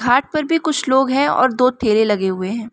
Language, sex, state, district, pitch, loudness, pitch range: Hindi, female, Arunachal Pradesh, Lower Dibang Valley, 255 Hz, -17 LUFS, 220-275 Hz